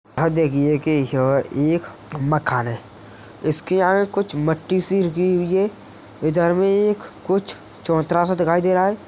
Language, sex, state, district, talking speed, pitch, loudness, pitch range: Hindi, male, Uttar Pradesh, Hamirpur, 165 wpm, 165 Hz, -20 LUFS, 140-185 Hz